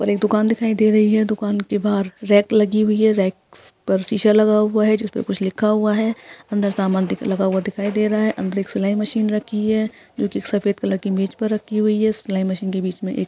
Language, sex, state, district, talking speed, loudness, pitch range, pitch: Hindi, female, Chhattisgarh, Rajnandgaon, 255 wpm, -19 LUFS, 195-215 Hz, 210 Hz